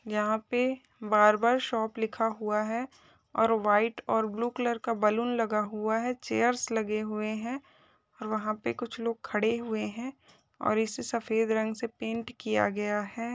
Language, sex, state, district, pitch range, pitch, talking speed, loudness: Hindi, male, Chhattisgarh, Balrampur, 215-235 Hz, 225 Hz, 170 wpm, -29 LUFS